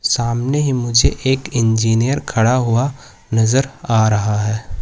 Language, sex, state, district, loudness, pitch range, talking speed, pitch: Hindi, male, Madhya Pradesh, Katni, -16 LUFS, 110-130 Hz, 135 wpm, 120 Hz